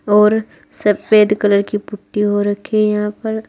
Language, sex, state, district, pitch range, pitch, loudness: Hindi, female, Uttar Pradesh, Saharanpur, 205-215 Hz, 210 Hz, -16 LUFS